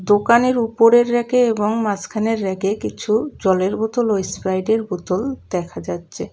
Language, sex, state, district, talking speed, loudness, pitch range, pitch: Bengali, female, West Bengal, Cooch Behar, 135 wpm, -19 LUFS, 190-230 Hz, 215 Hz